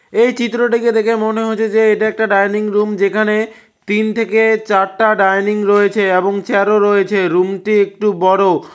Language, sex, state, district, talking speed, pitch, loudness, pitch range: Bengali, male, West Bengal, Cooch Behar, 150 wpm, 210 Hz, -14 LUFS, 200-220 Hz